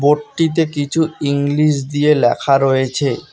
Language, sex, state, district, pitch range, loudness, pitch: Bengali, male, West Bengal, Alipurduar, 140-150 Hz, -16 LUFS, 145 Hz